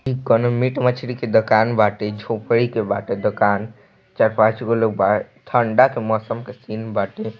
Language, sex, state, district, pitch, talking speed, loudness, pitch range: Bhojpuri, male, Bihar, East Champaran, 110 Hz, 160 wpm, -19 LUFS, 110-120 Hz